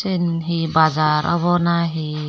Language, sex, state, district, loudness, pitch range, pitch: Chakma, female, Tripura, Dhalai, -19 LUFS, 155-170 Hz, 165 Hz